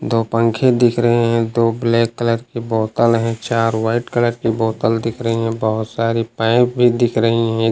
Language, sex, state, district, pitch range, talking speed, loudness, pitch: Hindi, male, Uttar Pradesh, Lucknow, 115-120 Hz, 200 wpm, -17 LUFS, 115 Hz